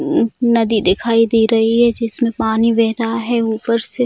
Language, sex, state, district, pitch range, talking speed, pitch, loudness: Hindi, female, Bihar, Jamui, 225-235 Hz, 190 wpm, 230 Hz, -15 LUFS